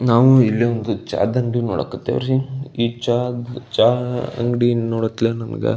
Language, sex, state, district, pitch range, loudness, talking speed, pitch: Kannada, male, Karnataka, Belgaum, 115-125 Hz, -19 LUFS, 145 wpm, 120 Hz